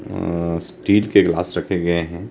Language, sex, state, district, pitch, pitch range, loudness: Hindi, male, Himachal Pradesh, Shimla, 85 Hz, 85-95 Hz, -19 LUFS